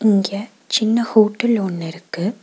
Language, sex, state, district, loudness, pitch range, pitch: Tamil, female, Tamil Nadu, Nilgiris, -19 LUFS, 195-225 Hz, 210 Hz